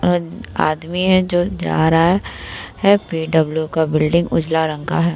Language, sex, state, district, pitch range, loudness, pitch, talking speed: Hindi, female, Bihar, Vaishali, 160-175 Hz, -17 LUFS, 165 Hz, 175 wpm